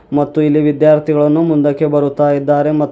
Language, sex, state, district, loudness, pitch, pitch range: Kannada, male, Karnataka, Bidar, -13 LUFS, 150 Hz, 145-150 Hz